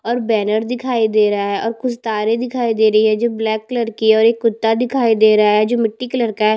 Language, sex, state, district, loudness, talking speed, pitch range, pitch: Hindi, female, Chhattisgarh, Bastar, -16 LUFS, 275 wpm, 215-235 Hz, 225 Hz